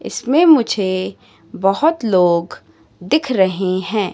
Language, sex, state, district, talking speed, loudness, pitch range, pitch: Hindi, female, Madhya Pradesh, Katni, 100 wpm, -16 LUFS, 185-245 Hz, 195 Hz